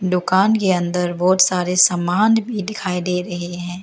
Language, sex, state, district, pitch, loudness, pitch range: Hindi, female, Arunachal Pradesh, Lower Dibang Valley, 180 Hz, -18 LUFS, 180-190 Hz